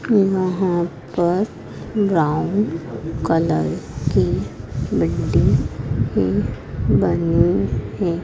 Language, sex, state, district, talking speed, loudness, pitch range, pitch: Hindi, female, Madhya Pradesh, Dhar, 65 wpm, -20 LUFS, 160-190 Hz, 170 Hz